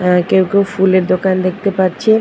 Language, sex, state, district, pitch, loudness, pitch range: Bengali, female, West Bengal, Purulia, 190 Hz, -14 LUFS, 185-200 Hz